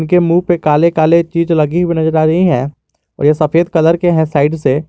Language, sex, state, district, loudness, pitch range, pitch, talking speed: Hindi, male, Jharkhand, Garhwa, -12 LUFS, 150-170 Hz, 160 Hz, 245 wpm